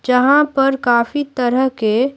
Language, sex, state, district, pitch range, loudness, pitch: Hindi, female, Bihar, Patna, 245-275 Hz, -15 LUFS, 260 Hz